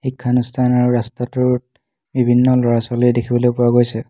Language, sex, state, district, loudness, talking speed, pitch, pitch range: Assamese, male, Assam, Hailakandi, -16 LUFS, 105 wpm, 125 Hz, 120-125 Hz